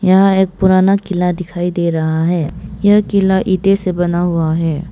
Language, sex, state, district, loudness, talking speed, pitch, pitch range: Hindi, female, Arunachal Pradesh, Papum Pare, -14 LUFS, 185 wpm, 180 Hz, 170-190 Hz